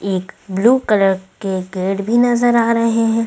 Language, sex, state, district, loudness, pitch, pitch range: Hindi, female, Madhya Pradesh, Bhopal, -16 LUFS, 210 Hz, 190-230 Hz